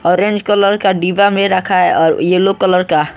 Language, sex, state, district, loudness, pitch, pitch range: Hindi, male, Bihar, West Champaran, -12 LUFS, 185 Hz, 180-200 Hz